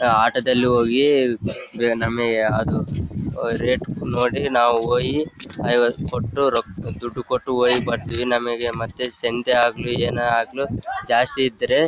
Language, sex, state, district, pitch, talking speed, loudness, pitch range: Kannada, male, Karnataka, Bellary, 120 Hz, 135 wpm, -20 LUFS, 115-125 Hz